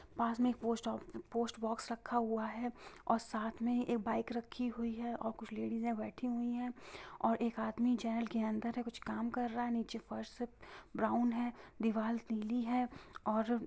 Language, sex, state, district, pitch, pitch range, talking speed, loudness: Hindi, female, Bihar, Sitamarhi, 235 Hz, 225-240 Hz, 200 wpm, -38 LUFS